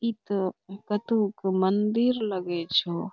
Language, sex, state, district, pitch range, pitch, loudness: Angika, female, Bihar, Bhagalpur, 185-215 Hz, 200 Hz, -26 LUFS